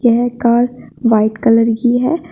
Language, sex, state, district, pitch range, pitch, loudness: Hindi, female, Uttar Pradesh, Shamli, 230-245 Hz, 240 Hz, -14 LUFS